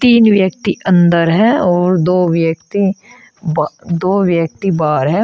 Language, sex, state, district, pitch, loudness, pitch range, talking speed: Hindi, female, Uttar Pradesh, Shamli, 180 Hz, -13 LUFS, 170-200 Hz, 125 wpm